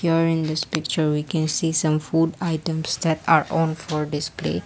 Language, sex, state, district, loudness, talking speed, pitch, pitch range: English, female, Assam, Kamrup Metropolitan, -22 LUFS, 180 wpm, 160 Hz, 155-165 Hz